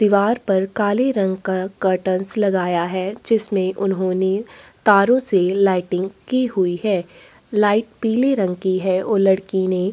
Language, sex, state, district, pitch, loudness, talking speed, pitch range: Hindi, female, Chhattisgarh, Korba, 195 Hz, -19 LUFS, 145 wpm, 185-210 Hz